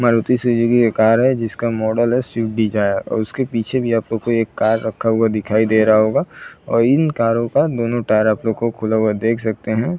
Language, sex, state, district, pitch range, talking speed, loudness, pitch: Hindi, male, Uttar Pradesh, Muzaffarnagar, 110-120 Hz, 240 wpm, -17 LUFS, 115 Hz